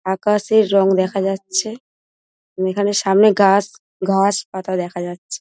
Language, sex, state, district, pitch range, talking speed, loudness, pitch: Bengali, female, West Bengal, Dakshin Dinajpur, 190-205 Hz, 120 wpm, -17 LUFS, 195 Hz